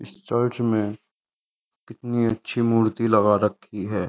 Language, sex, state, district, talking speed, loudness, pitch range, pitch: Hindi, male, Uttar Pradesh, Jyotiba Phule Nagar, 130 wpm, -23 LUFS, 105-115 Hz, 110 Hz